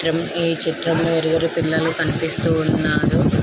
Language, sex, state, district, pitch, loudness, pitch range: Telugu, female, Andhra Pradesh, Krishna, 165 Hz, -19 LUFS, 160-165 Hz